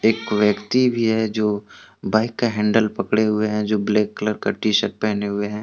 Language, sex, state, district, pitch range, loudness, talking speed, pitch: Hindi, male, Jharkhand, Deoghar, 105-110 Hz, -20 LUFS, 215 wpm, 105 Hz